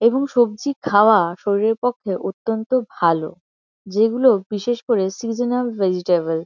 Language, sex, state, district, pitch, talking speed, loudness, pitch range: Bengali, female, West Bengal, Kolkata, 220 Hz, 120 wpm, -19 LUFS, 190-240 Hz